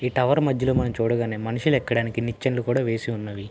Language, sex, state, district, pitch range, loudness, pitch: Telugu, male, Andhra Pradesh, Guntur, 115-130 Hz, -24 LUFS, 120 Hz